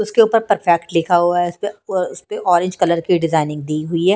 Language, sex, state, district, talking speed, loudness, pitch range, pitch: Hindi, female, Punjab, Kapurthala, 200 wpm, -17 LUFS, 170-205 Hz, 175 Hz